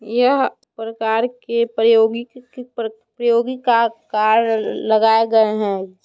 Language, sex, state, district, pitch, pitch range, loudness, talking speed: Hindi, female, Bihar, Muzaffarpur, 225 Hz, 220-240 Hz, -17 LUFS, 120 wpm